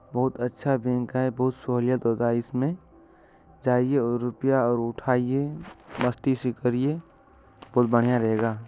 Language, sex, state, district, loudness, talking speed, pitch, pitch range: Maithili, male, Bihar, Supaul, -25 LUFS, 140 wpm, 125 Hz, 120-130 Hz